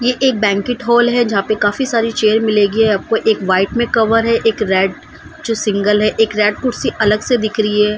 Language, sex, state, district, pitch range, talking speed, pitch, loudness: Hindi, female, Bihar, Samastipur, 210-235 Hz, 225 wpm, 220 Hz, -15 LUFS